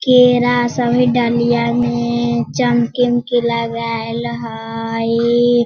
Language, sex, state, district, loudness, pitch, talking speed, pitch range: Hindi, female, Bihar, Sitamarhi, -16 LUFS, 235 Hz, 85 wpm, 235-240 Hz